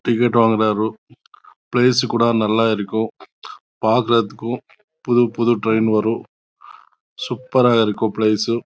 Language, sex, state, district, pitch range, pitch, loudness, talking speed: Tamil, male, Karnataka, Chamarajanagar, 110-120 Hz, 115 Hz, -18 LUFS, 105 wpm